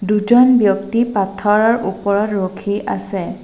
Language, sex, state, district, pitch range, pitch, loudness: Assamese, female, Assam, Sonitpur, 200-225 Hz, 205 Hz, -16 LUFS